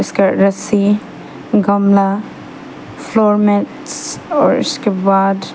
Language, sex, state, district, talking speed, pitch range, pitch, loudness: Hindi, female, Arunachal Pradesh, Papum Pare, 75 wpm, 195-210 Hz, 200 Hz, -14 LUFS